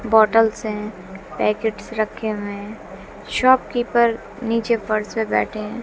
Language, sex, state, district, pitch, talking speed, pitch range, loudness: Hindi, female, Bihar, West Champaran, 220 Hz, 135 wpm, 210-230 Hz, -20 LUFS